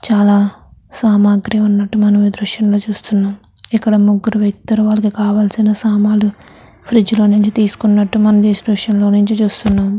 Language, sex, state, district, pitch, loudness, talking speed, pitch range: Telugu, female, Andhra Pradesh, Krishna, 210 Hz, -13 LUFS, 140 wpm, 205-215 Hz